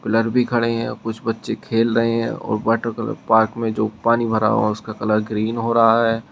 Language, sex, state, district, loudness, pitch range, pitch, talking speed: Hindi, male, Uttar Pradesh, Shamli, -20 LUFS, 110-115 Hz, 115 Hz, 235 wpm